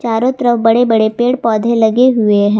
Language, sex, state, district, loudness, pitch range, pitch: Hindi, female, Jharkhand, Garhwa, -12 LUFS, 220-245 Hz, 230 Hz